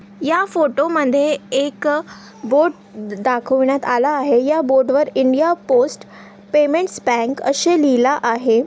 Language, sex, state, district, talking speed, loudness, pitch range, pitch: Marathi, female, Maharashtra, Aurangabad, 120 wpm, -17 LUFS, 245-300 Hz, 275 Hz